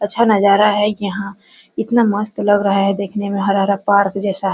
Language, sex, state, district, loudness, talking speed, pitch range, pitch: Hindi, female, Bihar, Araria, -16 LUFS, 200 wpm, 195-205 Hz, 200 Hz